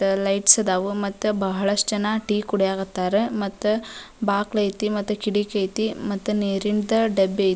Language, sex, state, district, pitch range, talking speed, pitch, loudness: Kannada, female, Karnataka, Dharwad, 195-210 Hz, 125 wpm, 205 Hz, -22 LUFS